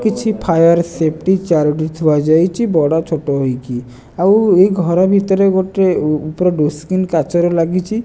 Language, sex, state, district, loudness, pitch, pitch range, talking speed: Odia, male, Odisha, Nuapada, -14 LUFS, 170 Hz, 155-190 Hz, 140 wpm